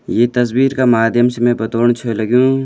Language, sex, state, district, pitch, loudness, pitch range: Garhwali, male, Uttarakhand, Uttarkashi, 120 Hz, -14 LUFS, 115-125 Hz